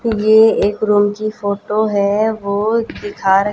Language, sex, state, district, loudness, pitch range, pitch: Hindi, female, Haryana, Jhajjar, -15 LUFS, 200-220 Hz, 210 Hz